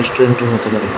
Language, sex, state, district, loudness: Bengali, male, Tripura, West Tripura, -14 LUFS